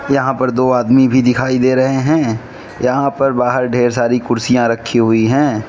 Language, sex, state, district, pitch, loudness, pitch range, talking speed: Hindi, male, Manipur, Imphal West, 125 Hz, -14 LUFS, 120-130 Hz, 190 wpm